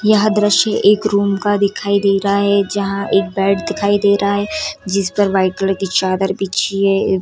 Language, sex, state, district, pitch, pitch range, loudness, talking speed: Hindi, female, Bihar, Sitamarhi, 200 Hz, 195-205 Hz, -15 LUFS, 190 wpm